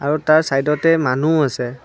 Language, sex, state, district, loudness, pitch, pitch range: Assamese, male, Assam, Kamrup Metropolitan, -16 LUFS, 150 Hz, 135-155 Hz